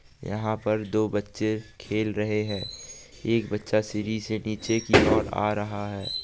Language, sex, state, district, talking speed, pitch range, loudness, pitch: Maithili, male, Bihar, Supaul, 165 wpm, 105-110 Hz, -27 LUFS, 105 Hz